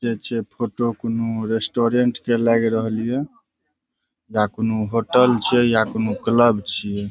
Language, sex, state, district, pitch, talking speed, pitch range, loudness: Maithili, male, Bihar, Saharsa, 115 Hz, 145 wpm, 110-120 Hz, -20 LUFS